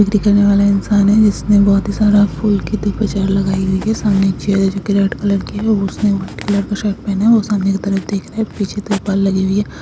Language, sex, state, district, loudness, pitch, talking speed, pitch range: Hindi, female, Andhra Pradesh, Krishna, -15 LUFS, 200 Hz, 255 wpm, 195-205 Hz